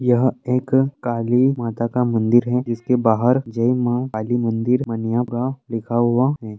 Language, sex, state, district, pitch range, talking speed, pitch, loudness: Hindi, male, Uttar Pradesh, Deoria, 115-125 Hz, 145 wpm, 120 Hz, -20 LUFS